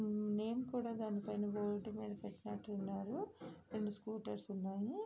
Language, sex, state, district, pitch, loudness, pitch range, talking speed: Telugu, female, Andhra Pradesh, Srikakulam, 210 Hz, -43 LUFS, 205-220 Hz, 130 wpm